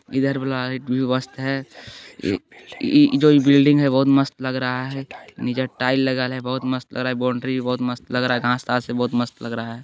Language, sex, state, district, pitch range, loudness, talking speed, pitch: Hindi, male, Bihar, Lakhisarai, 125-135 Hz, -21 LUFS, 245 wpm, 130 Hz